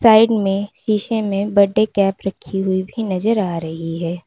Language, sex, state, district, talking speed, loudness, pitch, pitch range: Hindi, female, Uttar Pradesh, Lalitpur, 180 wpm, -18 LUFS, 195 Hz, 185-215 Hz